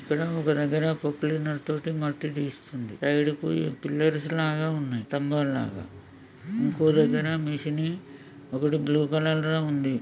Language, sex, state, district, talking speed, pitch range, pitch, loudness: Telugu, male, Andhra Pradesh, Krishna, 120 wpm, 140-155 Hz, 150 Hz, -27 LUFS